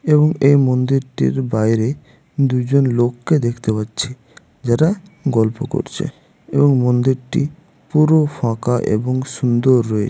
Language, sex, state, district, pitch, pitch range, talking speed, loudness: Bengali, male, West Bengal, Malda, 130 Hz, 120-150 Hz, 105 wpm, -17 LUFS